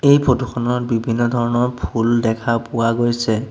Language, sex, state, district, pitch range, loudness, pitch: Assamese, male, Assam, Sonitpur, 115-125 Hz, -18 LUFS, 120 Hz